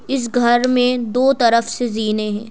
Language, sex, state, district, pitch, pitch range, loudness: Hindi, female, Madhya Pradesh, Bhopal, 240 Hz, 225-250 Hz, -17 LUFS